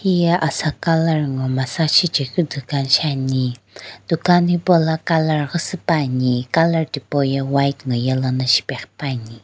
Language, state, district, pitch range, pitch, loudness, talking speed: Sumi, Nagaland, Dimapur, 130-165 Hz, 145 Hz, -18 LUFS, 145 wpm